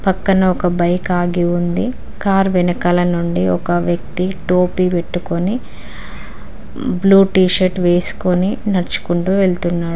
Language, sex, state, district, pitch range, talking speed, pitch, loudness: Telugu, female, Telangana, Mahabubabad, 175-190 Hz, 110 wpm, 180 Hz, -16 LUFS